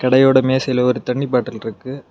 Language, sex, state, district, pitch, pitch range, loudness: Tamil, male, Tamil Nadu, Kanyakumari, 130 Hz, 125-130 Hz, -16 LUFS